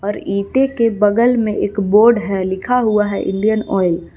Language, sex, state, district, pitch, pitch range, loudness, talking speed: Hindi, female, Jharkhand, Palamu, 210 Hz, 200-230 Hz, -16 LUFS, 200 wpm